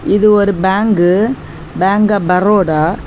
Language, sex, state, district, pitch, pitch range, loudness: Tamil, female, Tamil Nadu, Kanyakumari, 200 Hz, 180-210 Hz, -12 LUFS